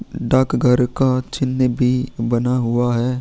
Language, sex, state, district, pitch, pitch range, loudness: Hindi, male, Chhattisgarh, Sukma, 125 Hz, 120-130 Hz, -18 LUFS